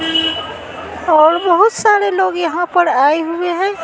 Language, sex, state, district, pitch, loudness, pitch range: Hindi, female, Bihar, Patna, 350 Hz, -14 LUFS, 325-380 Hz